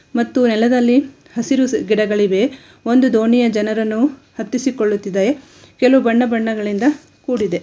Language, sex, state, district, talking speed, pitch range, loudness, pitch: Kannada, female, Karnataka, Shimoga, 95 wpm, 220-260 Hz, -16 LUFS, 235 Hz